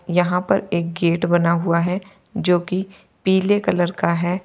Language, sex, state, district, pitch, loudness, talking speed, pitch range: Hindi, female, Uttar Pradesh, Lalitpur, 180 Hz, -20 LUFS, 175 wpm, 170-190 Hz